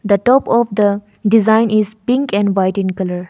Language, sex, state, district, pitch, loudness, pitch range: English, female, Arunachal Pradesh, Longding, 210 Hz, -15 LUFS, 200-225 Hz